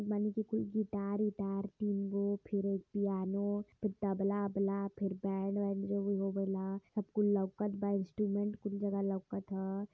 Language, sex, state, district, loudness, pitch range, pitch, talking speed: Hindi, male, Uttar Pradesh, Varanasi, -37 LUFS, 195-205 Hz, 200 Hz, 135 wpm